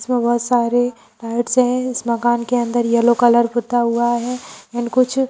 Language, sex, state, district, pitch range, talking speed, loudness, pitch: Hindi, female, Bihar, Gopalganj, 235-245 Hz, 180 wpm, -17 LUFS, 240 Hz